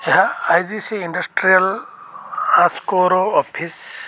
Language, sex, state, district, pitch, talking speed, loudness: Odia, male, Odisha, Malkangiri, 190 Hz, 105 wpm, -17 LUFS